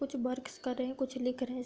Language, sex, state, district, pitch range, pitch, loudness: Hindi, female, Uttar Pradesh, Budaun, 255-265 Hz, 255 Hz, -36 LUFS